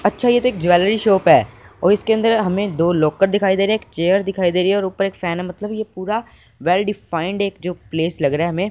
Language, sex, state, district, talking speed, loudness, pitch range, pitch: Hindi, male, Punjab, Fazilka, 270 wpm, -18 LUFS, 175-205 Hz, 195 Hz